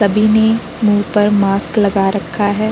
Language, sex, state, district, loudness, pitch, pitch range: Hindi, female, Uttar Pradesh, Deoria, -14 LUFS, 205 Hz, 200-215 Hz